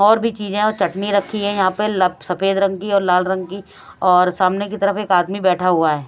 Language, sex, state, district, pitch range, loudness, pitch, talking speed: Hindi, female, Haryana, Rohtak, 180-205 Hz, -18 LUFS, 195 Hz, 245 wpm